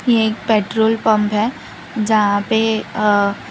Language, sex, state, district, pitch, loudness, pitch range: Hindi, female, Gujarat, Valsad, 220 Hz, -17 LUFS, 210-220 Hz